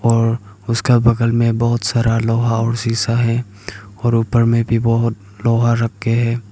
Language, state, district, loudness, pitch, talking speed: Hindi, Arunachal Pradesh, Papum Pare, -17 LUFS, 115 Hz, 165 wpm